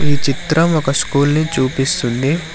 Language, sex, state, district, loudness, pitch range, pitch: Telugu, male, Telangana, Hyderabad, -16 LUFS, 135-160 Hz, 145 Hz